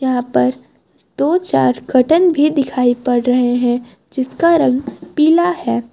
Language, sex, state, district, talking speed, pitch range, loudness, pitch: Hindi, female, Jharkhand, Garhwa, 140 wpm, 245-305 Hz, -15 LUFS, 255 Hz